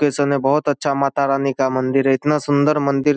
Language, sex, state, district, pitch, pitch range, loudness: Hindi, male, Bihar, Saharsa, 140 Hz, 135-145 Hz, -18 LUFS